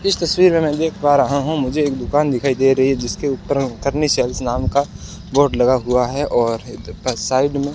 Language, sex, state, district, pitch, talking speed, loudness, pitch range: Hindi, male, Rajasthan, Bikaner, 135 Hz, 225 wpm, -17 LUFS, 125-145 Hz